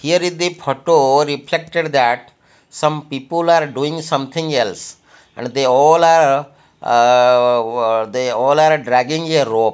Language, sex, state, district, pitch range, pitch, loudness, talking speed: English, male, Odisha, Malkangiri, 125-165 Hz, 145 Hz, -15 LUFS, 140 wpm